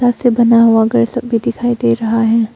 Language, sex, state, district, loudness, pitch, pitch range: Hindi, female, Arunachal Pradesh, Longding, -13 LUFS, 235 Hz, 230-240 Hz